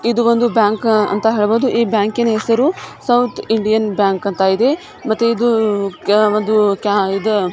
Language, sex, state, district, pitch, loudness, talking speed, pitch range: Kannada, female, Karnataka, Shimoga, 220 Hz, -15 LUFS, 135 wpm, 205-235 Hz